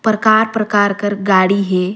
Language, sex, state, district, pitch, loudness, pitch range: Surgujia, female, Chhattisgarh, Sarguja, 205 Hz, -14 LUFS, 195-220 Hz